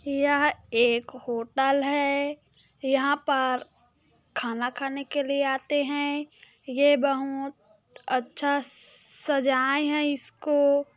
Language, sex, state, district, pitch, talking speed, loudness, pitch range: Hindi, female, Chhattisgarh, Korba, 280 Hz, 100 wpm, -26 LUFS, 260-285 Hz